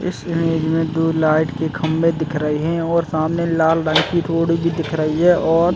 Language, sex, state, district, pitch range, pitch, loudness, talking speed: Hindi, male, Chhattisgarh, Bastar, 160-165 Hz, 165 Hz, -18 LUFS, 230 wpm